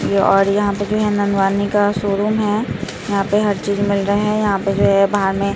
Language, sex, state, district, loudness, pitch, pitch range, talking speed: Hindi, female, Bihar, Katihar, -17 LUFS, 200 Hz, 200-205 Hz, 260 wpm